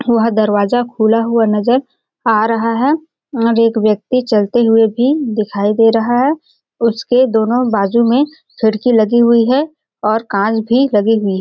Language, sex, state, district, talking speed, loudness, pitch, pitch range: Hindi, female, Chhattisgarh, Balrampur, 170 wpm, -14 LUFS, 230 Hz, 220-250 Hz